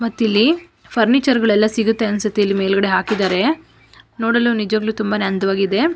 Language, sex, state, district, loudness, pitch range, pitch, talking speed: Kannada, female, Karnataka, Mysore, -17 LUFS, 200-230 Hz, 215 Hz, 140 wpm